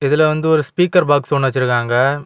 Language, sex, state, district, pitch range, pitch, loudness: Tamil, male, Tamil Nadu, Kanyakumari, 135-155 Hz, 145 Hz, -15 LUFS